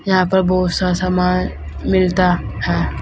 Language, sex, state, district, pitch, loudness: Hindi, female, Uttar Pradesh, Saharanpur, 180 Hz, -17 LUFS